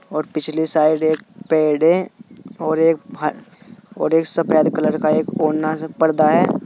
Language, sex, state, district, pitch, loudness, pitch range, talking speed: Hindi, male, Uttar Pradesh, Saharanpur, 160 Hz, -18 LUFS, 155-165 Hz, 160 wpm